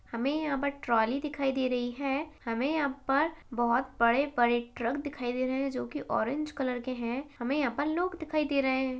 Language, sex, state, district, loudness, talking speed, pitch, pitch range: Hindi, female, Uttar Pradesh, Hamirpur, -30 LUFS, 235 wpm, 270 Hz, 245-290 Hz